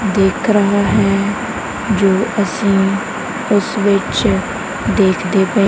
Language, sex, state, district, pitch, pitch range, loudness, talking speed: Punjabi, female, Punjab, Kapurthala, 200 Hz, 195-210 Hz, -15 LUFS, 95 wpm